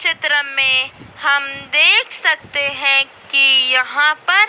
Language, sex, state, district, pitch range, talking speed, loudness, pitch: Hindi, female, Madhya Pradesh, Dhar, 275-305 Hz, 120 wpm, -13 LUFS, 280 Hz